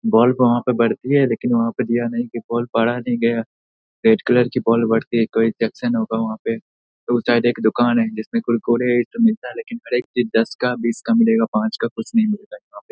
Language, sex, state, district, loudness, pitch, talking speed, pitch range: Hindi, male, Bihar, Saharsa, -19 LUFS, 120 Hz, 245 wpm, 115-125 Hz